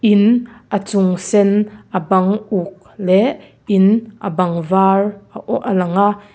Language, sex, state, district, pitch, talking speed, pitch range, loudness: Mizo, female, Mizoram, Aizawl, 200 Hz, 160 wpm, 190-210 Hz, -16 LUFS